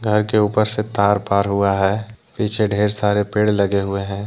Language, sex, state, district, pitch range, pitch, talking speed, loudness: Hindi, male, Jharkhand, Deoghar, 100-105 Hz, 105 Hz, 225 wpm, -18 LUFS